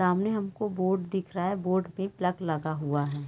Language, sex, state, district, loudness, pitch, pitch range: Hindi, female, Chhattisgarh, Raigarh, -30 LUFS, 185 Hz, 160-195 Hz